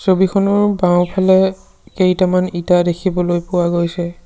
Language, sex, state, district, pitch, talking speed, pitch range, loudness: Assamese, male, Assam, Sonitpur, 180 Hz, 100 wpm, 175-190 Hz, -15 LUFS